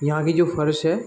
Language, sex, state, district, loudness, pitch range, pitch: Hindi, male, Chhattisgarh, Raigarh, -21 LUFS, 150-170 Hz, 160 Hz